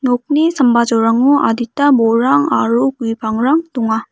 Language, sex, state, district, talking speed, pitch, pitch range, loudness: Garo, female, Meghalaya, West Garo Hills, 115 wpm, 240 Hz, 225-275 Hz, -14 LUFS